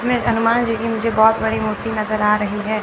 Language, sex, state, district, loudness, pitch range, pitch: Hindi, female, Chandigarh, Chandigarh, -18 LUFS, 215-230 Hz, 220 Hz